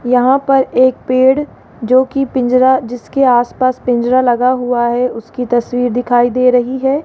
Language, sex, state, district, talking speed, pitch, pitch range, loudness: Hindi, female, Rajasthan, Jaipur, 170 wpm, 250 Hz, 245-260 Hz, -13 LUFS